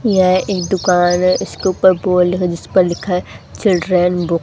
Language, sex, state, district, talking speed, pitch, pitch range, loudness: Hindi, female, Haryana, Charkhi Dadri, 165 wpm, 180 Hz, 180-185 Hz, -15 LUFS